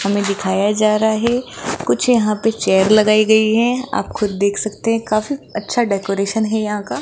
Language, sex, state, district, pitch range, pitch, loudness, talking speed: Hindi, female, Rajasthan, Jaipur, 200-225 Hz, 215 Hz, -17 LUFS, 205 wpm